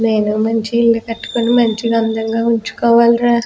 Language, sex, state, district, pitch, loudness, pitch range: Telugu, female, Andhra Pradesh, Guntur, 230 Hz, -15 LUFS, 225-235 Hz